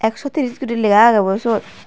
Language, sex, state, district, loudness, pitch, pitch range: Chakma, female, Tripura, Dhalai, -16 LUFS, 230 Hz, 215-250 Hz